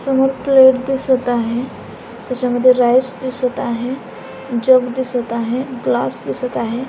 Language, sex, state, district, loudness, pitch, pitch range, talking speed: Marathi, female, Maharashtra, Pune, -16 LUFS, 255 Hz, 245-260 Hz, 120 wpm